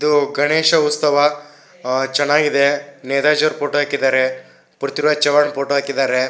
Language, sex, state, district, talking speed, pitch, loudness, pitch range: Kannada, male, Karnataka, Shimoga, 115 wpm, 145 Hz, -17 LUFS, 140-150 Hz